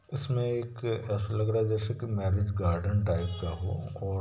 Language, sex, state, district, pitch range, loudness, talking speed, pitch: Hindi, male, Bihar, Sitamarhi, 95-115 Hz, -31 LUFS, 200 wpm, 105 Hz